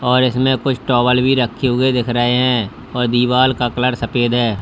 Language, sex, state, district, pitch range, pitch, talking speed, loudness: Hindi, male, Uttar Pradesh, Lalitpur, 120-130 Hz, 125 Hz, 195 wpm, -16 LUFS